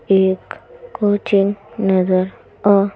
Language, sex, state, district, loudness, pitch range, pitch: Hindi, female, Madhya Pradesh, Bhopal, -17 LUFS, 190-205 Hz, 200 Hz